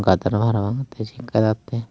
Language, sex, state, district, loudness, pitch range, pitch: Chakma, male, Tripura, Dhalai, -22 LUFS, 105-120 Hz, 110 Hz